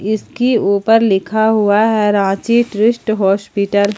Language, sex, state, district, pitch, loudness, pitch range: Hindi, female, Jharkhand, Ranchi, 215 Hz, -14 LUFS, 200-225 Hz